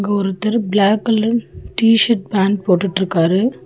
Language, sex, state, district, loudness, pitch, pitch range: Tamil, female, Tamil Nadu, Chennai, -16 LUFS, 205 Hz, 190-225 Hz